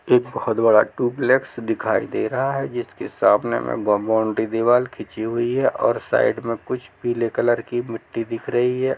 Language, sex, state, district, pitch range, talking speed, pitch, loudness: Hindi, male, Bihar, East Champaran, 115-125 Hz, 180 wpm, 120 Hz, -21 LUFS